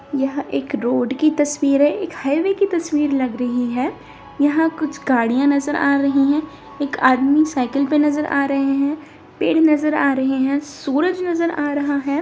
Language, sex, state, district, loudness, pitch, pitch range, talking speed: Hindi, female, Bihar, Darbhanga, -18 LUFS, 285 Hz, 275-305 Hz, 185 wpm